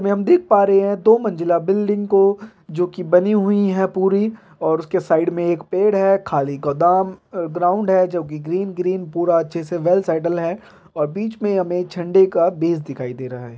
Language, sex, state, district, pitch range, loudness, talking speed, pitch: Hindi, male, Bihar, Purnia, 170-195 Hz, -18 LUFS, 210 wpm, 180 Hz